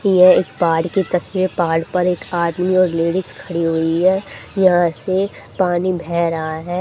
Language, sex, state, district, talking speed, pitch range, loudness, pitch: Hindi, female, Haryana, Charkhi Dadri, 185 wpm, 170-185 Hz, -17 LUFS, 180 Hz